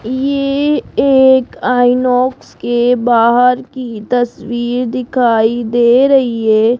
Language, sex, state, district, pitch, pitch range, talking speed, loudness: Hindi, female, Rajasthan, Jaipur, 245 Hz, 240-260 Hz, 95 wpm, -12 LUFS